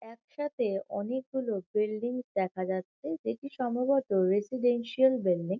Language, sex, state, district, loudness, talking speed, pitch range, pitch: Bengali, female, West Bengal, Kolkata, -31 LUFS, 105 wpm, 190-255 Hz, 230 Hz